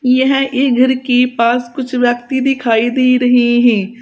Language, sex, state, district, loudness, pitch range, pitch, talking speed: Hindi, female, Uttar Pradesh, Saharanpur, -13 LUFS, 240-260 Hz, 250 Hz, 165 wpm